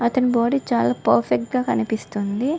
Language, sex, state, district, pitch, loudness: Telugu, female, Andhra Pradesh, Guntur, 205 Hz, -21 LUFS